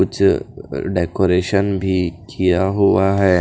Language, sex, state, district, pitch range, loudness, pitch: Hindi, male, Bihar, Kaimur, 90-100 Hz, -17 LUFS, 95 Hz